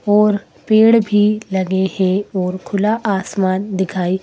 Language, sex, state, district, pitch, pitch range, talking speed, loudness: Hindi, female, Madhya Pradesh, Bhopal, 195 Hz, 190-210 Hz, 140 wpm, -16 LUFS